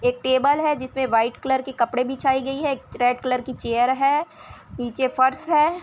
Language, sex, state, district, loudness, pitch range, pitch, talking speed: Hindi, female, Chhattisgarh, Bilaspur, -22 LUFS, 250-285 Hz, 265 Hz, 195 wpm